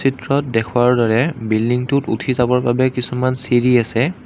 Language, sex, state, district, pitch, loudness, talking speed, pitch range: Assamese, male, Assam, Kamrup Metropolitan, 125 Hz, -17 LUFS, 140 wpm, 115-130 Hz